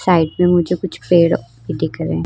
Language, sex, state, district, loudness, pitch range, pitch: Hindi, female, Uttar Pradesh, Budaun, -16 LUFS, 130-180 Hz, 175 Hz